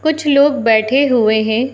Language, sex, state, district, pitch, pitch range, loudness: Hindi, female, Uttar Pradesh, Muzaffarnagar, 260 Hz, 220-285 Hz, -13 LUFS